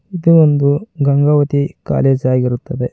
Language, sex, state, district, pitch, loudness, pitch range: Kannada, male, Karnataka, Koppal, 145 Hz, -14 LUFS, 135-155 Hz